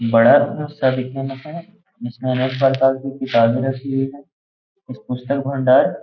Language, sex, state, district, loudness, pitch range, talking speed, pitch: Hindi, male, Bihar, Gaya, -18 LUFS, 130-140 Hz, 130 wpm, 135 Hz